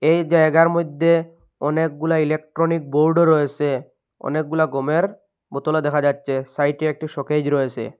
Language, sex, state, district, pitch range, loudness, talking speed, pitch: Bengali, male, Assam, Hailakandi, 145-165 Hz, -20 LUFS, 135 wpm, 155 Hz